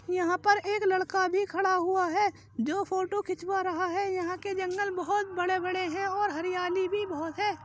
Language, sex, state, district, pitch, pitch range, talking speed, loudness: Hindi, female, Uttar Pradesh, Jyotiba Phule Nagar, 375 Hz, 360-395 Hz, 190 wpm, -29 LUFS